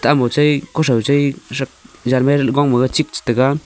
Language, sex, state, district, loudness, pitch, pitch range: Wancho, male, Arunachal Pradesh, Longding, -16 LUFS, 140 Hz, 125-145 Hz